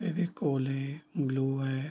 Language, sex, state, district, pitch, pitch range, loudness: Hindi, male, Bihar, Darbhanga, 140 Hz, 135-155 Hz, -32 LUFS